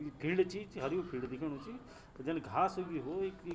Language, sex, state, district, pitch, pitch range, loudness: Garhwali, male, Uttarakhand, Tehri Garhwal, 175 Hz, 150-190 Hz, -38 LUFS